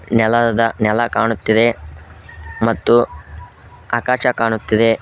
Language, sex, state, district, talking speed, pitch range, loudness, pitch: Kannada, male, Karnataka, Koppal, 70 wpm, 95-115 Hz, -16 LUFS, 110 Hz